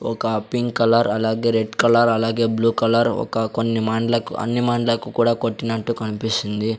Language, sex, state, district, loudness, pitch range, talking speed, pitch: Telugu, male, Andhra Pradesh, Sri Satya Sai, -20 LUFS, 110-115 Hz, 150 wpm, 115 Hz